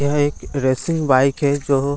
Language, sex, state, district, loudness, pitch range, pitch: Hindi, male, Bihar, Gaya, -18 LUFS, 135-145 Hz, 140 Hz